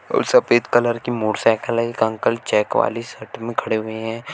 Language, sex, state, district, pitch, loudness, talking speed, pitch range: Hindi, male, Uttar Pradesh, Shamli, 115 Hz, -20 LUFS, 195 wpm, 110-120 Hz